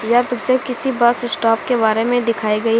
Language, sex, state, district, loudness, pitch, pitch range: Hindi, female, Uttar Pradesh, Lucknow, -17 LUFS, 240 Hz, 225-245 Hz